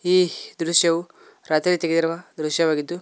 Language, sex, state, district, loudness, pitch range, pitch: Kannada, male, Karnataka, Koppal, -21 LUFS, 165-175 Hz, 165 Hz